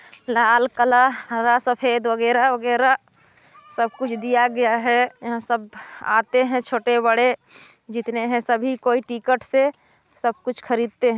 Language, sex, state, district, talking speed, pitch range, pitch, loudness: Hindi, female, Chhattisgarh, Sarguja, 125 wpm, 235-250 Hz, 240 Hz, -20 LUFS